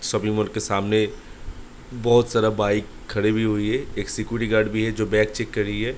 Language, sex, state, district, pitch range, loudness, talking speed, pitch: Hindi, male, Uttar Pradesh, Budaun, 105-110 Hz, -22 LUFS, 240 wpm, 110 Hz